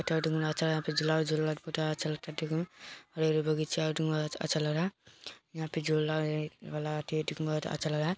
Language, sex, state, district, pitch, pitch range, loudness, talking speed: Hindi, female, Bihar, Samastipur, 155 Hz, 155-160 Hz, -32 LUFS, 155 wpm